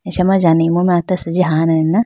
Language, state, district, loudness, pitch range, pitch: Idu Mishmi, Arunachal Pradesh, Lower Dibang Valley, -14 LUFS, 165-180 Hz, 175 Hz